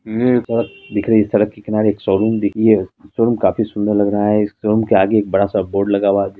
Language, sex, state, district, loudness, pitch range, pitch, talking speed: Hindi, female, Bihar, Araria, -16 LUFS, 100-110 Hz, 105 Hz, 255 wpm